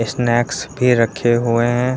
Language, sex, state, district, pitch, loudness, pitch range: Hindi, male, Uttar Pradesh, Lucknow, 120 Hz, -17 LUFS, 120-125 Hz